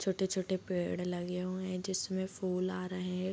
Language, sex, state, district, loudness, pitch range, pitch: Hindi, female, Bihar, Bhagalpur, -36 LUFS, 180-190 Hz, 185 Hz